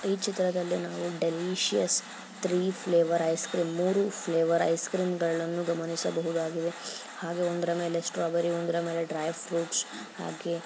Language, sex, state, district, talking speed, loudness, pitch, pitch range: Kannada, female, Karnataka, Dharwad, 135 wpm, -29 LUFS, 170 Hz, 165-180 Hz